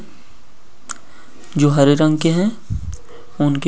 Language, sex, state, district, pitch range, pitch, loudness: Hindi, male, Bihar, Gopalganj, 140-155 Hz, 145 Hz, -17 LUFS